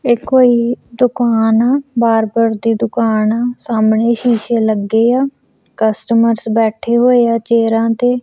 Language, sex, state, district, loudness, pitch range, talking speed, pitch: Punjabi, female, Punjab, Kapurthala, -14 LUFS, 225-245 Hz, 125 wpm, 230 Hz